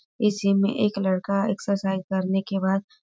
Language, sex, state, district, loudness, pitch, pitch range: Hindi, female, Bihar, East Champaran, -24 LUFS, 195 Hz, 190-205 Hz